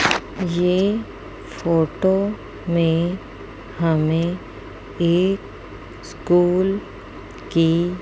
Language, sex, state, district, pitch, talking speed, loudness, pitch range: Hindi, female, Chandigarh, Chandigarh, 170 Hz, 50 wpm, -20 LUFS, 110-180 Hz